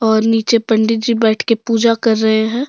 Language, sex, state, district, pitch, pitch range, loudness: Hindi, female, Jharkhand, Deoghar, 225 Hz, 220-230 Hz, -14 LUFS